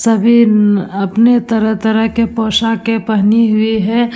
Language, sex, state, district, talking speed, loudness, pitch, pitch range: Hindi, female, Bihar, Vaishali, 130 wpm, -12 LUFS, 225 Hz, 215-230 Hz